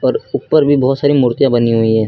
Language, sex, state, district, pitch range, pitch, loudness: Hindi, male, Uttar Pradesh, Lucknow, 115-145 Hz, 135 Hz, -13 LUFS